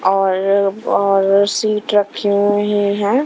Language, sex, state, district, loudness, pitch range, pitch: Hindi, female, Himachal Pradesh, Shimla, -15 LUFS, 195-205 Hz, 200 Hz